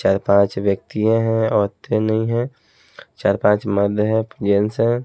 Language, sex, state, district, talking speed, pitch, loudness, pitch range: Hindi, male, Haryana, Jhajjar, 155 wpm, 105 Hz, -19 LUFS, 100-115 Hz